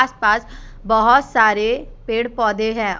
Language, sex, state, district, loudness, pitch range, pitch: Hindi, female, Jharkhand, Deoghar, -17 LUFS, 215-235 Hz, 225 Hz